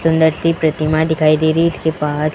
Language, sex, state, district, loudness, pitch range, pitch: Hindi, male, Rajasthan, Jaipur, -15 LUFS, 155-160 Hz, 155 Hz